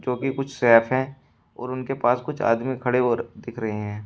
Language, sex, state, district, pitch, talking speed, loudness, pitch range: Hindi, male, Uttar Pradesh, Shamli, 125 Hz, 235 wpm, -23 LUFS, 115-130 Hz